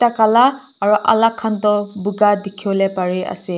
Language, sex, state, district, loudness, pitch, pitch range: Nagamese, female, Nagaland, Kohima, -16 LUFS, 210 Hz, 195-220 Hz